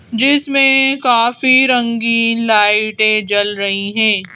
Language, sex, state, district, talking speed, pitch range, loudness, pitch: Hindi, female, Madhya Pradesh, Bhopal, 95 wpm, 210-255 Hz, -12 LUFS, 230 Hz